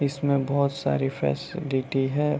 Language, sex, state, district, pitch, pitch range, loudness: Hindi, male, Bihar, Begusarai, 135 Hz, 130-140 Hz, -26 LUFS